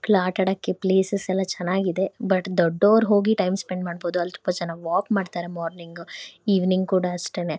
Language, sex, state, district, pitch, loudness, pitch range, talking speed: Kannada, female, Karnataka, Shimoga, 185 Hz, -23 LUFS, 175-195 Hz, 175 wpm